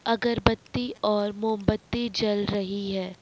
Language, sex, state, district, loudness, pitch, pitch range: Hindi, male, Jharkhand, Ranchi, -27 LUFS, 210 Hz, 200-230 Hz